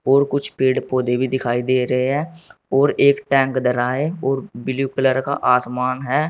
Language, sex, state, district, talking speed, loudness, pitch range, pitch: Hindi, male, Uttar Pradesh, Saharanpur, 190 wpm, -19 LUFS, 125-140 Hz, 130 Hz